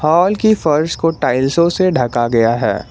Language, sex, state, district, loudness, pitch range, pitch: Hindi, male, Jharkhand, Garhwa, -14 LUFS, 125-170 Hz, 160 Hz